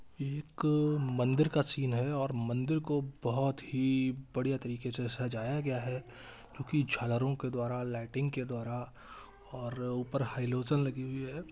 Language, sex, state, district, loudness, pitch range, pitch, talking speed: Hindi, male, Jharkhand, Jamtara, -34 LUFS, 125-140 Hz, 130 Hz, 155 wpm